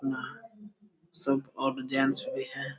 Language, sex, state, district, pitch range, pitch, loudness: Hindi, male, Bihar, Jamui, 135-210 Hz, 135 Hz, -31 LUFS